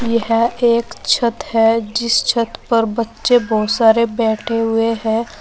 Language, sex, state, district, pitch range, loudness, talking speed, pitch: Hindi, female, Uttar Pradesh, Saharanpur, 225-235 Hz, -16 LUFS, 155 wpm, 230 Hz